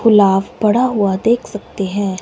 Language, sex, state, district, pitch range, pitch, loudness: Hindi, male, Himachal Pradesh, Shimla, 195-230 Hz, 205 Hz, -15 LUFS